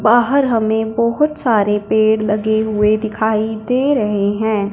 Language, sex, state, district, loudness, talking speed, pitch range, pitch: Hindi, male, Punjab, Fazilka, -16 LUFS, 140 wpm, 215-235 Hz, 220 Hz